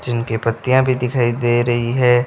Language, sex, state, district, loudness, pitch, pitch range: Hindi, male, Rajasthan, Bikaner, -17 LUFS, 120 Hz, 120-125 Hz